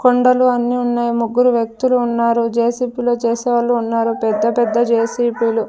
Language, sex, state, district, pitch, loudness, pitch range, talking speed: Telugu, female, Andhra Pradesh, Sri Satya Sai, 235 Hz, -16 LUFS, 230-245 Hz, 170 wpm